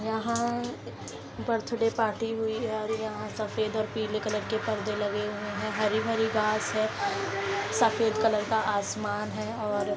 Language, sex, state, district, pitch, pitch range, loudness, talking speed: Hindi, female, Uttar Pradesh, Jyotiba Phule Nagar, 220 Hz, 210-225 Hz, -29 LUFS, 155 wpm